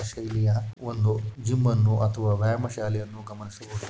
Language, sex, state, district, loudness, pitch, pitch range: Kannada, male, Karnataka, Shimoga, -26 LUFS, 110 Hz, 105-115 Hz